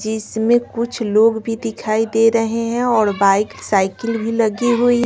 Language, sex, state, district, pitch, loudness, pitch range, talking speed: Hindi, female, Bihar, Patna, 225 Hz, -17 LUFS, 220-230 Hz, 155 wpm